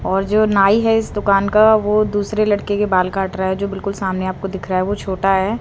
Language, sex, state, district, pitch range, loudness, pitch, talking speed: Hindi, female, Haryana, Rohtak, 190-210 Hz, -17 LUFS, 200 Hz, 265 wpm